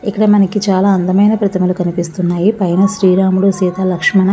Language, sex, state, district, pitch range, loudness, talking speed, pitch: Telugu, female, Andhra Pradesh, Visakhapatnam, 180-200 Hz, -13 LUFS, 150 wpm, 190 Hz